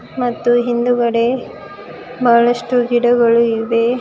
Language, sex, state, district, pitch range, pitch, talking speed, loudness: Kannada, female, Karnataka, Bidar, 235-245 Hz, 240 Hz, 75 wpm, -15 LUFS